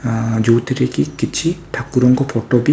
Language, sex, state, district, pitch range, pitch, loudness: Odia, male, Odisha, Khordha, 115-140 Hz, 125 Hz, -17 LUFS